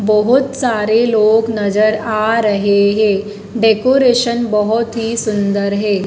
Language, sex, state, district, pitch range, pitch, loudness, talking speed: Hindi, female, Madhya Pradesh, Dhar, 205-230 Hz, 215 Hz, -14 LUFS, 120 wpm